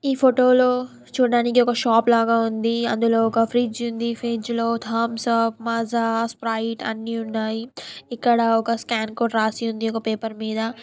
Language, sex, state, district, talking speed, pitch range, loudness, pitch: Telugu, female, Telangana, Nalgonda, 145 wpm, 225-235 Hz, -21 LUFS, 230 Hz